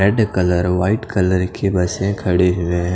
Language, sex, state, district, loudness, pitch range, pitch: Hindi, male, Odisha, Khordha, -18 LUFS, 90-100 Hz, 90 Hz